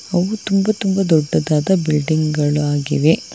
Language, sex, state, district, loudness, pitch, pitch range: Kannada, female, Karnataka, Bangalore, -17 LUFS, 160 Hz, 150-195 Hz